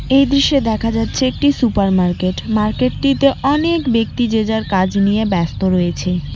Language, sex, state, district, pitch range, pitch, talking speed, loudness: Bengali, female, West Bengal, Cooch Behar, 185-270 Hz, 220 Hz, 150 wpm, -16 LUFS